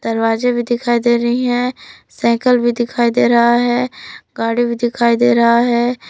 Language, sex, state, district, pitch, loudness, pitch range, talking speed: Hindi, female, Jharkhand, Palamu, 240 Hz, -15 LUFS, 235-245 Hz, 175 wpm